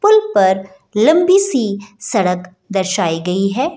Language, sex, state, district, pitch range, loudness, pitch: Hindi, female, Bihar, Jahanabad, 190-265 Hz, -15 LUFS, 200 Hz